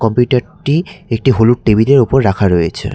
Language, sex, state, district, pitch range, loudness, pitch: Bengali, male, West Bengal, Cooch Behar, 105-135 Hz, -13 LUFS, 120 Hz